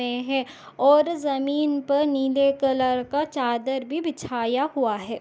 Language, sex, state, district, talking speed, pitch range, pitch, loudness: Hindi, female, Chhattisgarh, Bastar, 150 wpm, 250-290 Hz, 270 Hz, -23 LUFS